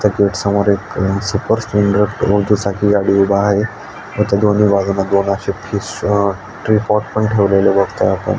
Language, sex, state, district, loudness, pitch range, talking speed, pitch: Marathi, male, Maharashtra, Aurangabad, -15 LUFS, 100-105 Hz, 115 wpm, 100 Hz